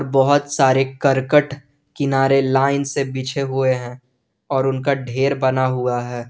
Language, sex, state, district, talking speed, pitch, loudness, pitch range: Hindi, male, Jharkhand, Garhwa, 145 wpm, 135 Hz, -18 LUFS, 130-140 Hz